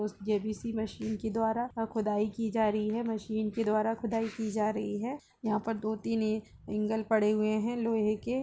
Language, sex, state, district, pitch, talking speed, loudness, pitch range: Hindi, female, Uttar Pradesh, Jalaun, 220 Hz, 215 wpm, -32 LUFS, 215-225 Hz